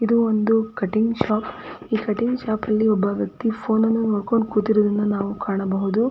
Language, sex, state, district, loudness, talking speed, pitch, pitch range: Kannada, female, Karnataka, Chamarajanagar, -21 LUFS, 165 wpm, 220 Hz, 210-225 Hz